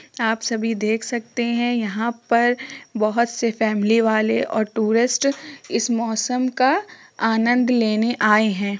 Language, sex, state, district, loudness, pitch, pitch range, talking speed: Hindi, female, Uttar Pradesh, Etah, -20 LUFS, 230 Hz, 220-245 Hz, 135 wpm